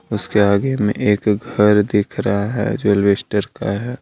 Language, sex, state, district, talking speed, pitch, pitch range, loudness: Hindi, male, Jharkhand, Deoghar, 180 wpm, 105 Hz, 100-110 Hz, -17 LUFS